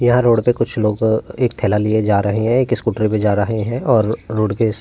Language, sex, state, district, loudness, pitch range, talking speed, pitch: Hindi, male, Uttar Pradesh, Varanasi, -17 LUFS, 105-120 Hz, 275 wpm, 110 Hz